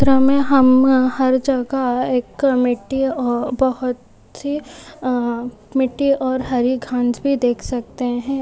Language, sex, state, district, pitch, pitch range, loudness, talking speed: Hindi, female, Bihar, Purnia, 260 Hz, 245-270 Hz, -18 LUFS, 130 wpm